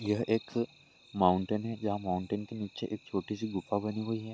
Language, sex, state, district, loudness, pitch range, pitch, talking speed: Hindi, male, Bihar, Lakhisarai, -33 LUFS, 100-110 Hz, 105 Hz, 210 wpm